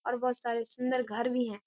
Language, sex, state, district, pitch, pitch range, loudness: Hindi, female, Bihar, Kishanganj, 245 Hz, 230-250 Hz, -32 LUFS